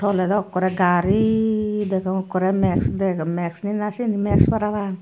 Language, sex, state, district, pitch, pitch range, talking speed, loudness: Chakma, female, Tripura, Dhalai, 195 Hz, 185-210 Hz, 165 wpm, -21 LUFS